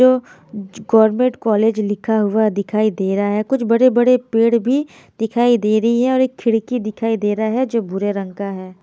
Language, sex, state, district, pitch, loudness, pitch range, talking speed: Hindi, female, Haryana, Jhajjar, 225 Hz, -17 LUFS, 210-240 Hz, 195 wpm